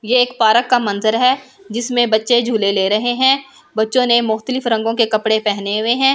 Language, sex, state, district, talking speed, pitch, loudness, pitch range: Hindi, female, Delhi, New Delhi, 235 wpm, 230 Hz, -16 LUFS, 220-250 Hz